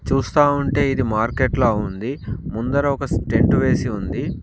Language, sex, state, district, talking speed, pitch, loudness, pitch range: Telugu, male, Telangana, Komaram Bheem, 150 wpm, 135 Hz, -20 LUFS, 115-140 Hz